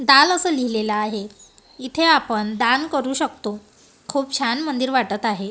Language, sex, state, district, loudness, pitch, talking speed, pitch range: Marathi, female, Maharashtra, Gondia, -20 LUFS, 260 Hz, 150 wpm, 215-280 Hz